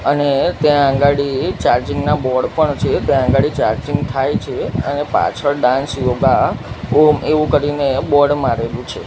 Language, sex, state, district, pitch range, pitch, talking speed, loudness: Gujarati, male, Gujarat, Gandhinagar, 130-145 Hz, 140 Hz, 150 wpm, -16 LUFS